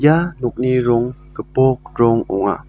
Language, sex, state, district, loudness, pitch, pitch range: Garo, male, Meghalaya, South Garo Hills, -17 LUFS, 130 Hz, 120-145 Hz